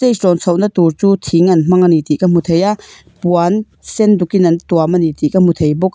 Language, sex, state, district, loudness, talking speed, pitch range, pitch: Mizo, female, Mizoram, Aizawl, -13 LUFS, 290 wpm, 170-190 Hz, 175 Hz